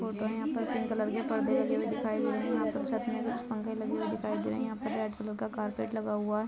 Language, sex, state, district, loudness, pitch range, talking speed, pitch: Hindi, female, Jharkhand, Jamtara, -33 LUFS, 215-235 Hz, 325 wpm, 220 Hz